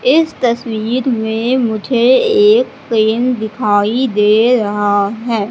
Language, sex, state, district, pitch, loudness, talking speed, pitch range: Hindi, female, Madhya Pradesh, Katni, 235 Hz, -13 LUFS, 110 wpm, 220-255 Hz